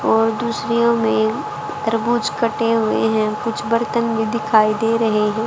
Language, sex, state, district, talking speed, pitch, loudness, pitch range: Hindi, female, Haryana, Charkhi Dadri, 155 wpm, 225 Hz, -18 LUFS, 215-230 Hz